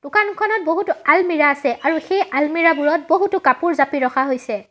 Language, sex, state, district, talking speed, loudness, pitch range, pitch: Assamese, female, Assam, Sonitpur, 165 wpm, -17 LUFS, 275-365 Hz, 315 Hz